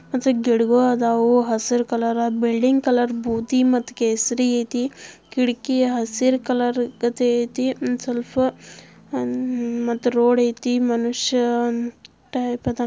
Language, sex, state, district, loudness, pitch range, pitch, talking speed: Kannada, female, Karnataka, Belgaum, -21 LUFS, 235-250 Hz, 245 Hz, 70 wpm